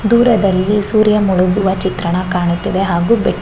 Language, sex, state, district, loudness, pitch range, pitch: Kannada, female, Karnataka, Shimoga, -14 LUFS, 185-210 Hz, 195 Hz